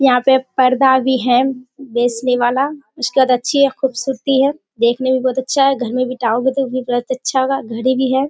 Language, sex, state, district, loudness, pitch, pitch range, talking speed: Hindi, female, Bihar, Kishanganj, -16 LUFS, 260 Hz, 250-270 Hz, 225 wpm